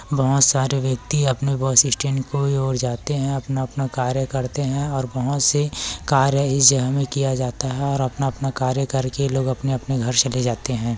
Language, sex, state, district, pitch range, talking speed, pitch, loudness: Hindi, male, Chhattisgarh, Korba, 130-140 Hz, 190 wpm, 135 Hz, -20 LUFS